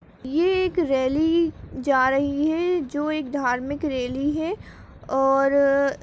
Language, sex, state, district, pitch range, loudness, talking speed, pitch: Hindi, female, Uttarakhand, Uttarkashi, 270-320 Hz, -23 LUFS, 130 wpm, 280 Hz